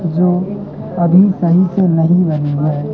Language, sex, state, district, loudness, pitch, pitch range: Hindi, male, Madhya Pradesh, Katni, -13 LUFS, 175 Hz, 160-180 Hz